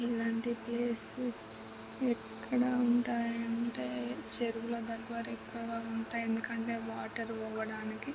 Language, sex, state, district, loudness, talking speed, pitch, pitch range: Telugu, male, Andhra Pradesh, Chittoor, -36 LUFS, 75 wpm, 230 Hz, 225-235 Hz